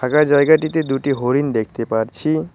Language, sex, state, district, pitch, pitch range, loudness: Bengali, male, West Bengal, Cooch Behar, 140 Hz, 125-155 Hz, -17 LUFS